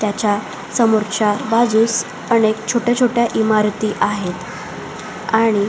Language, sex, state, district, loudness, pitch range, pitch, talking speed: Marathi, female, Maharashtra, Solapur, -17 LUFS, 205-230 Hz, 220 Hz, 105 wpm